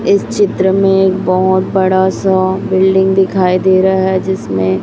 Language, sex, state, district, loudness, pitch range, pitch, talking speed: Hindi, female, Chhattisgarh, Raipur, -12 LUFS, 185-190 Hz, 190 Hz, 150 wpm